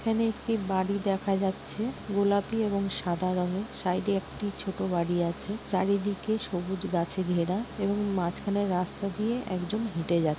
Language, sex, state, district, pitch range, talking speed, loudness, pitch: Bengali, female, West Bengal, Jhargram, 180-205 Hz, 150 wpm, -29 LUFS, 195 Hz